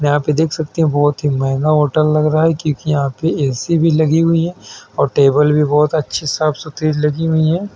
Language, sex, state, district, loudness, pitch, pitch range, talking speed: Hindi, male, Uttar Pradesh, Hamirpur, -15 LUFS, 155 Hz, 145-160 Hz, 225 wpm